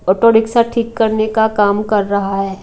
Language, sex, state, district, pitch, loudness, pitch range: Hindi, female, Haryana, Rohtak, 215 Hz, -14 LUFS, 200-225 Hz